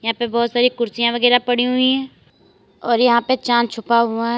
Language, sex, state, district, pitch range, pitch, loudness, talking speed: Hindi, female, Uttar Pradesh, Lalitpur, 235-245 Hz, 235 Hz, -17 LUFS, 220 wpm